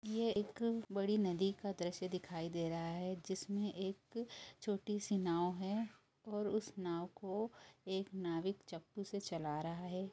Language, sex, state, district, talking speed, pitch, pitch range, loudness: Hindi, female, Uttar Pradesh, Jyotiba Phule Nagar, 155 wpm, 195 Hz, 175-210 Hz, -42 LUFS